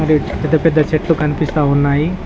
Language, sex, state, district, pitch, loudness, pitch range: Telugu, male, Telangana, Mahabubabad, 155 Hz, -15 LUFS, 150-160 Hz